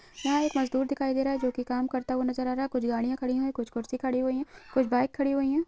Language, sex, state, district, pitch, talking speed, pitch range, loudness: Hindi, female, Chhattisgarh, Sukma, 260 Hz, 330 wpm, 255-275 Hz, -29 LUFS